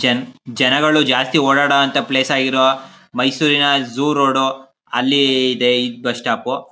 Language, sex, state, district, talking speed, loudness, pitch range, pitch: Kannada, male, Karnataka, Mysore, 145 wpm, -15 LUFS, 125-140 Hz, 135 Hz